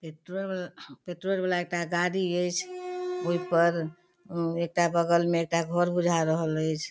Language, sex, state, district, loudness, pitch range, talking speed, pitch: Maithili, female, Bihar, Darbhanga, -28 LUFS, 170-180 Hz, 130 wpm, 175 Hz